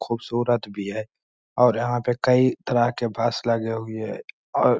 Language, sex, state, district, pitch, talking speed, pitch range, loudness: Magahi, male, Bihar, Lakhisarai, 120 Hz, 190 wpm, 115-120 Hz, -23 LUFS